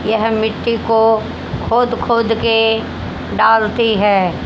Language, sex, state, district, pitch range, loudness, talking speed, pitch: Hindi, female, Haryana, Charkhi Dadri, 220-230 Hz, -15 LUFS, 110 wpm, 225 Hz